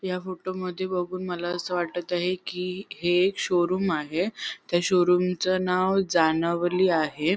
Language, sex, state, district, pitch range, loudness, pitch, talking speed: Marathi, female, Maharashtra, Sindhudurg, 175-185 Hz, -25 LUFS, 180 Hz, 130 wpm